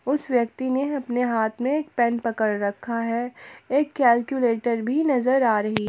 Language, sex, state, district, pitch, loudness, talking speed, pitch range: Hindi, female, Jharkhand, Palamu, 240 Hz, -23 LUFS, 175 wpm, 230-265 Hz